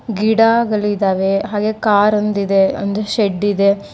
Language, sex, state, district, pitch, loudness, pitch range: Kannada, female, Karnataka, Koppal, 205 Hz, -15 LUFS, 200-215 Hz